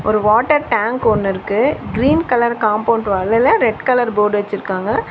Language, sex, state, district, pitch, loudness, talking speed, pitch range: Tamil, female, Tamil Nadu, Chennai, 220 Hz, -16 LUFS, 155 wpm, 210-240 Hz